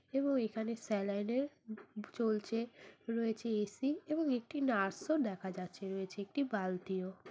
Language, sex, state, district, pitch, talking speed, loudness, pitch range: Bengali, female, West Bengal, Malda, 220 Hz, 150 wpm, -38 LUFS, 200-260 Hz